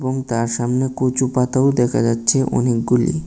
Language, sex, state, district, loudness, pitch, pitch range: Bengali, male, Tripura, West Tripura, -18 LUFS, 125 Hz, 120-130 Hz